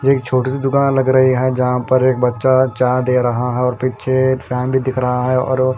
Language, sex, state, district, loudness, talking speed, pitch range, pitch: Hindi, male, Punjab, Kapurthala, -16 LUFS, 240 wpm, 125-130 Hz, 130 Hz